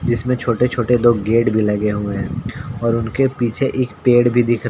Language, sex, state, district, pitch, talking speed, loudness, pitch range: Hindi, male, Uttar Pradesh, Ghazipur, 120 Hz, 215 wpm, -17 LUFS, 115-125 Hz